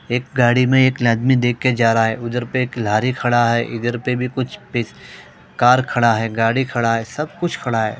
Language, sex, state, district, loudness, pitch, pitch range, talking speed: Hindi, male, Punjab, Pathankot, -18 LUFS, 120 Hz, 115-125 Hz, 225 wpm